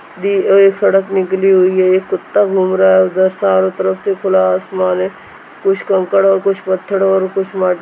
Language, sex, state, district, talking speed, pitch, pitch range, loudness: Hindi, male, Bihar, Purnia, 190 wpm, 190 Hz, 185-195 Hz, -13 LUFS